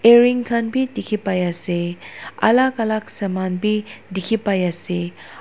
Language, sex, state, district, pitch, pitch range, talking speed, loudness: Nagamese, female, Nagaland, Dimapur, 210 Hz, 180-230 Hz, 145 wpm, -20 LUFS